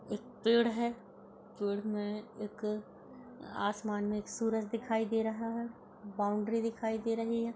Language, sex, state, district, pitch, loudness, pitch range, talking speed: Hindi, female, Uttar Pradesh, Budaun, 220 Hz, -35 LUFS, 210-230 Hz, 150 wpm